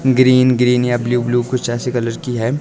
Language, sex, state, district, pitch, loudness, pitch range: Hindi, male, Himachal Pradesh, Shimla, 125 Hz, -15 LUFS, 120-130 Hz